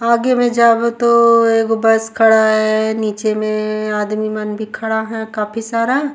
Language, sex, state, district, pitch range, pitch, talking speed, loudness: Surgujia, female, Chhattisgarh, Sarguja, 215-230 Hz, 220 Hz, 175 wpm, -15 LUFS